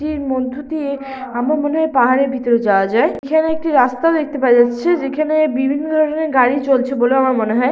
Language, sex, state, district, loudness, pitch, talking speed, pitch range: Bengali, female, West Bengal, Purulia, -16 LUFS, 270 Hz, 185 wpm, 255-305 Hz